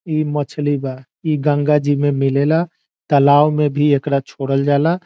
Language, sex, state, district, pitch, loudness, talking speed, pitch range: Bhojpuri, male, Bihar, Saran, 145 Hz, -17 LUFS, 165 wpm, 140-150 Hz